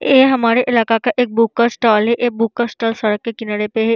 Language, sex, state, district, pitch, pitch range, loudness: Hindi, female, Bihar, Vaishali, 230 Hz, 225-240 Hz, -16 LUFS